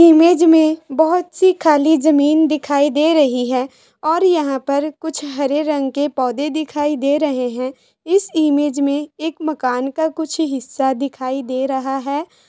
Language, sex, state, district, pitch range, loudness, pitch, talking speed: Hindi, female, Bihar, East Champaran, 270-315 Hz, -17 LUFS, 295 Hz, 165 wpm